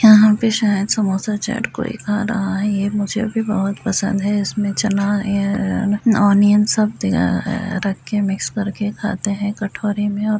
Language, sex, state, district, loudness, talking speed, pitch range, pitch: Hindi, female, Uttar Pradesh, Deoria, -18 LUFS, 190 wpm, 200-215 Hz, 205 Hz